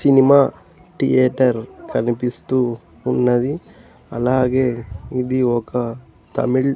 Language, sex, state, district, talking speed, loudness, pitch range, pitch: Telugu, male, Andhra Pradesh, Sri Satya Sai, 80 wpm, -19 LUFS, 120-130 Hz, 125 Hz